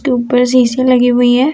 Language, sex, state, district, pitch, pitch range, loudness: Hindi, female, Bihar, Sitamarhi, 250 Hz, 245-255 Hz, -11 LUFS